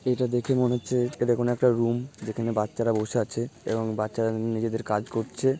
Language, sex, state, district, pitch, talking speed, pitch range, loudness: Bengali, male, West Bengal, Malda, 115 Hz, 170 wpm, 110-125 Hz, -27 LUFS